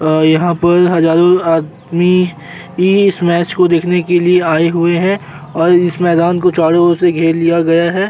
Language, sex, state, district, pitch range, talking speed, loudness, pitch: Hindi, male, Uttar Pradesh, Jyotiba Phule Nagar, 165-180 Hz, 185 wpm, -12 LUFS, 175 Hz